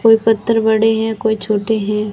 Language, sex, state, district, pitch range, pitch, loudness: Hindi, female, Rajasthan, Barmer, 215-225 Hz, 220 Hz, -15 LUFS